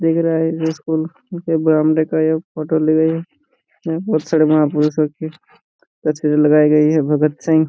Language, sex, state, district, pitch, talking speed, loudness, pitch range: Hindi, male, Jharkhand, Jamtara, 160 Hz, 205 wpm, -16 LUFS, 155-160 Hz